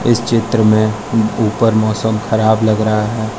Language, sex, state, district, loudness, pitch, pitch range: Hindi, male, Arunachal Pradesh, Lower Dibang Valley, -14 LUFS, 110 Hz, 110-115 Hz